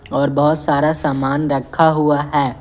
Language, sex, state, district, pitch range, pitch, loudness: Hindi, female, Bihar, West Champaran, 140-150 Hz, 145 Hz, -16 LUFS